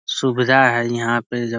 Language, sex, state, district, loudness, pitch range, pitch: Hindi, male, Bihar, East Champaran, -17 LUFS, 120-130 Hz, 120 Hz